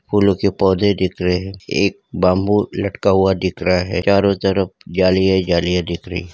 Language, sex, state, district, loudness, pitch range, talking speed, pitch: Hindi, male, Uttarakhand, Uttarkashi, -17 LUFS, 90-100 Hz, 190 wpm, 95 Hz